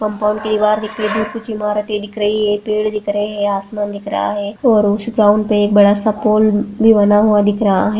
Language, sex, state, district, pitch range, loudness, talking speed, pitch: Hindi, female, Rajasthan, Nagaur, 205-215 Hz, -15 LUFS, 230 wpm, 210 Hz